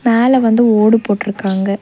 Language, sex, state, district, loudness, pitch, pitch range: Tamil, female, Tamil Nadu, Nilgiris, -13 LUFS, 220 Hz, 200-230 Hz